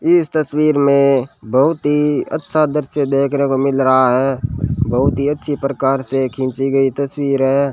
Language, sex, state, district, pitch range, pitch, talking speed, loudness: Hindi, male, Rajasthan, Bikaner, 135-145 Hz, 140 Hz, 165 wpm, -16 LUFS